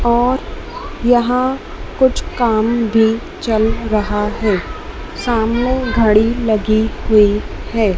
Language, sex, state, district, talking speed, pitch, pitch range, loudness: Hindi, female, Madhya Pradesh, Dhar, 100 wpm, 225 Hz, 215-245 Hz, -16 LUFS